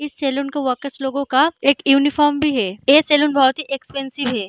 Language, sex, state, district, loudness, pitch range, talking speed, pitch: Hindi, female, Bihar, Jahanabad, -17 LUFS, 265-295 Hz, 215 wpm, 275 Hz